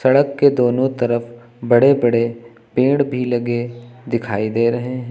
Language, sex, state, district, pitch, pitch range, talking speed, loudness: Hindi, male, Uttar Pradesh, Lucknow, 120 Hz, 120-130 Hz, 155 wpm, -17 LUFS